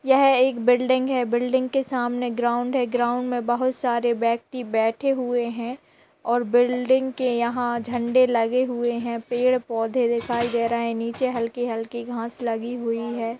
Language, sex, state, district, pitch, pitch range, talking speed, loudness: Hindi, female, Uttar Pradesh, Jalaun, 240 Hz, 235-250 Hz, 165 wpm, -23 LUFS